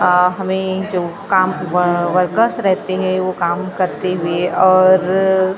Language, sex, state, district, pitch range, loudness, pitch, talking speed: Hindi, female, Maharashtra, Gondia, 180-190 Hz, -16 LUFS, 185 Hz, 150 wpm